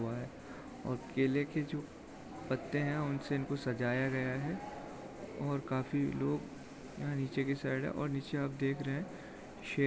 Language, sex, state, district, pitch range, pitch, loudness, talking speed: Hindi, male, Maharashtra, Chandrapur, 135-145 Hz, 140 Hz, -37 LUFS, 170 wpm